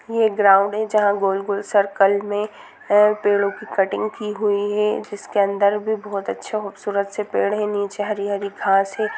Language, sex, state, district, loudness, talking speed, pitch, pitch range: Hindi, female, Bihar, Gopalganj, -20 LUFS, 185 wpm, 205 Hz, 200-210 Hz